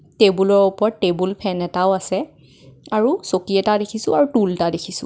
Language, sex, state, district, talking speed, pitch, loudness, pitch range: Assamese, female, Assam, Kamrup Metropolitan, 180 wpm, 195 Hz, -19 LUFS, 185-210 Hz